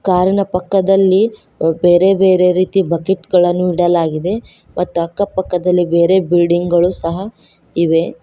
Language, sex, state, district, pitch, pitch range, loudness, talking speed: Kannada, female, Karnataka, Koppal, 180 Hz, 175-190 Hz, -14 LUFS, 125 wpm